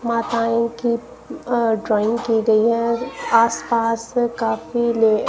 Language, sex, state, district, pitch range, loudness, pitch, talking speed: Hindi, female, Punjab, Kapurthala, 225-235 Hz, -19 LUFS, 230 Hz, 135 wpm